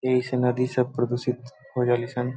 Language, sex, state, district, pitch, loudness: Bhojpuri, male, Bihar, Saran, 125 Hz, -25 LUFS